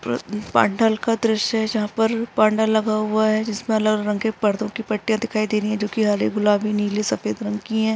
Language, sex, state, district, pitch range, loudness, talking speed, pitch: Hindi, female, Chhattisgarh, Balrampur, 210-220 Hz, -21 LUFS, 235 wpm, 215 Hz